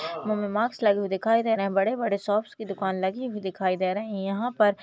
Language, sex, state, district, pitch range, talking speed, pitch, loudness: Hindi, female, Maharashtra, Pune, 195-225 Hz, 275 wpm, 205 Hz, -26 LUFS